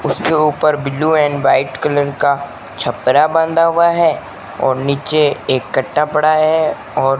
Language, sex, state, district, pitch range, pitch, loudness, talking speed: Hindi, male, Rajasthan, Bikaner, 140-155 Hz, 150 Hz, -15 LUFS, 160 wpm